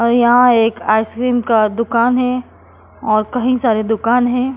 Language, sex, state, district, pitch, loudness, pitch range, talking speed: Hindi, female, Goa, North and South Goa, 235 Hz, -15 LUFS, 225-250 Hz, 160 wpm